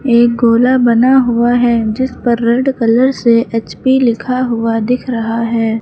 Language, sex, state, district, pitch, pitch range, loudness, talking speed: Hindi, female, Uttar Pradesh, Lucknow, 235 Hz, 230-255 Hz, -12 LUFS, 165 wpm